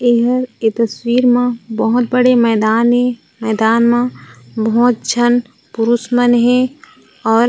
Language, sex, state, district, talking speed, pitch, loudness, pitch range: Chhattisgarhi, female, Chhattisgarh, Raigarh, 130 wpm, 240 Hz, -14 LUFS, 225-245 Hz